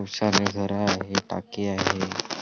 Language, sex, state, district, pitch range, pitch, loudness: Marathi, male, Maharashtra, Washim, 95-100 Hz, 100 Hz, -25 LUFS